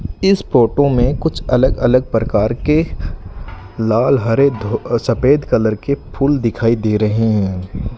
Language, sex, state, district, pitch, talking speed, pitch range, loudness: Hindi, male, Rajasthan, Bikaner, 115 Hz, 135 wpm, 110-135 Hz, -15 LUFS